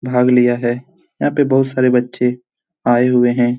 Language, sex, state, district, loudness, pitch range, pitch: Hindi, male, Bihar, Jamui, -15 LUFS, 120-125 Hz, 125 Hz